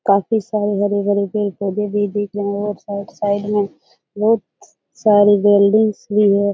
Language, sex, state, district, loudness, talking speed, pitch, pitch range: Hindi, female, Bihar, Jahanabad, -17 LUFS, 155 wpm, 205 Hz, 200-210 Hz